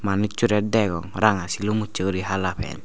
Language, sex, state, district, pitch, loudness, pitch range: Chakma, male, Tripura, Unakoti, 100 Hz, -23 LUFS, 95-105 Hz